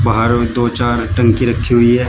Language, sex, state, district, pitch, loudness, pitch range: Hindi, male, Uttar Pradesh, Shamli, 120 Hz, -13 LUFS, 115-120 Hz